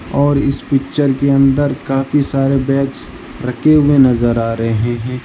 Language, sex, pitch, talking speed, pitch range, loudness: Hindi, male, 135 Hz, 160 wpm, 125-140 Hz, -14 LUFS